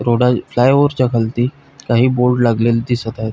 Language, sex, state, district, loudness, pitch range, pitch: Marathi, male, Maharashtra, Pune, -15 LUFS, 115-125 Hz, 120 Hz